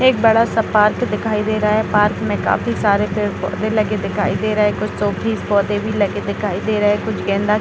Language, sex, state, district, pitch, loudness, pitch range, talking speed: Hindi, female, Bihar, Jahanabad, 210 Hz, -17 LUFS, 205-215 Hz, 245 wpm